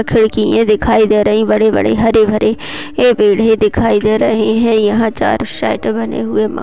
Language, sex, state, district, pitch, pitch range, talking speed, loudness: Hindi, female, Uttar Pradesh, Gorakhpur, 215 Hz, 205-225 Hz, 145 wpm, -12 LUFS